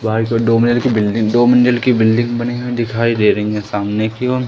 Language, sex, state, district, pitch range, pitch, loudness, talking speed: Hindi, male, Madhya Pradesh, Umaria, 110-120 Hz, 115 Hz, -15 LUFS, 270 wpm